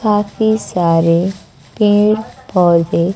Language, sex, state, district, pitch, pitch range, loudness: Hindi, female, Bihar, West Champaran, 195 Hz, 170-215 Hz, -14 LUFS